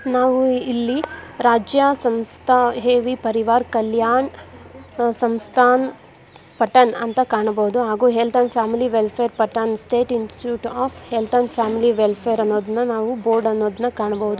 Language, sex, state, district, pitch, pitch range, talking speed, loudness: Kannada, female, Karnataka, Bangalore, 235 Hz, 225-245 Hz, 115 wpm, -19 LUFS